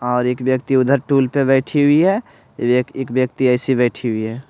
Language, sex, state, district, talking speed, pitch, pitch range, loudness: Hindi, male, Bihar, Patna, 200 wpm, 130 Hz, 125-135 Hz, -17 LUFS